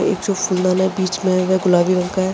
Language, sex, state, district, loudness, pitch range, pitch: Hindi, female, Uttar Pradesh, Jalaun, -17 LUFS, 185-190 Hz, 185 Hz